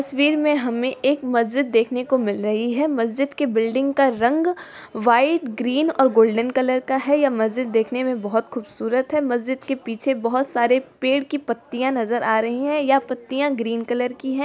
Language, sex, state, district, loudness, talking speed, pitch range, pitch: Hindi, female, Bihar, East Champaran, -21 LUFS, 195 wpm, 235-275 Hz, 255 Hz